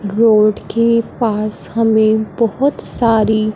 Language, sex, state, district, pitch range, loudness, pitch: Hindi, female, Punjab, Fazilka, 215-230 Hz, -14 LUFS, 220 Hz